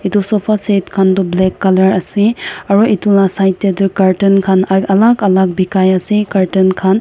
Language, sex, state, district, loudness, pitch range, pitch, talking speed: Nagamese, female, Nagaland, Kohima, -12 LUFS, 190-205 Hz, 195 Hz, 180 wpm